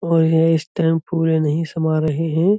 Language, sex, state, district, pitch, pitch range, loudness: Hindi, male, Uttar Pradesh, Budaun, 165 Hz, 160-165 Hz, -18 LUFS